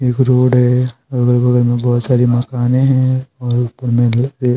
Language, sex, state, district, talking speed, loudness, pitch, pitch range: Hindi, male, Bihar, Patna, 155 wpm, -14 LUFS, 125 Hz, 120-130 Hz